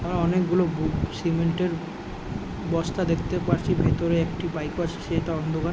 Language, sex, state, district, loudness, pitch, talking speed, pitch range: Bengali, male, West Bengal, Jhargram, -26 LUFS, 170 Hz, 155 wpm, 165-175 Hz